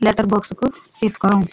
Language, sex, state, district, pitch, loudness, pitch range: Garhwali, female, Uttarakhand, Uttarkashi, 215 Hz, -20 LUFS, 200-245 Hz